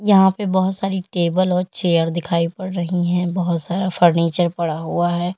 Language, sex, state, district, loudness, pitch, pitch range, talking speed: Hindi, female, Uttar Pradesh, Lalitpur, -19 LUFS, 175 Hz, 170-185 Hz, 190 wpm